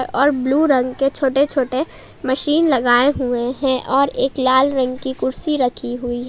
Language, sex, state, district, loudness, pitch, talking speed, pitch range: Hindi, female, Jharkhand, Palamu, -17 LUFS, 265 Hz, 170 wpm, 255-280 Hz